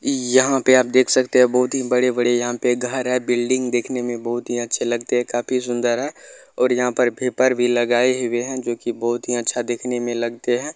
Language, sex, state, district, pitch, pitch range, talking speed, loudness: Hindi, male, Bihar, Lakhisarai, 125 Hz, 120-125 Hz, 220 wpm, -20 LUFS